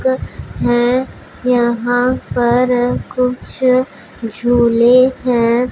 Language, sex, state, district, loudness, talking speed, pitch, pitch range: Hindi, male, Punjab, Pathankot, -15 LUFS, 65 wpm, 245 Hz, 240-255 Hz